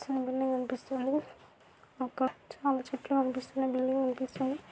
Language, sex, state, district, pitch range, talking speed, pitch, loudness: Telugu, female, Andhra Pradesh, Guntur, 255-270 Hz, 100 wpm, 260 Hz, -33 LUFS